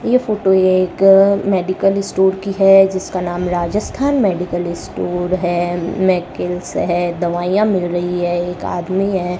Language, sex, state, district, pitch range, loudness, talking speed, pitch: Hindi, male, Rajasthan, Bikaner, 175-195 Hz, -16 LUFS, 140 wpm, 185 Hz